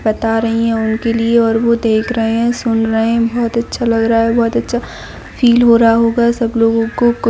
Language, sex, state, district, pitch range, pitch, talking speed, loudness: Hindi, female, Jharkhand, Jamtara, 225-235 Hz, 230 Hz, 230 wpm, -13 LUFS